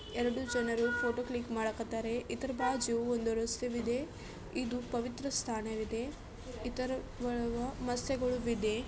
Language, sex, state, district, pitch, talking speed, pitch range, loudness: Kannada, female, Karnataka, Belgaum, 240 Hz, 95 wpm, 230-250 Hz, -36 LUFS